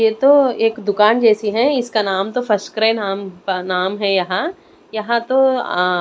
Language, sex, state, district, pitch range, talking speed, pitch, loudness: Hindi, female, Odisha, Khordha, 195-245 Hz, 180 wpm, 220 Hz, -17 LUFS